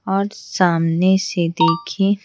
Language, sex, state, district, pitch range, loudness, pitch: Hindi, female, Bihar, Patna, 165-195 Hz, -18 LUFS, 185 Hz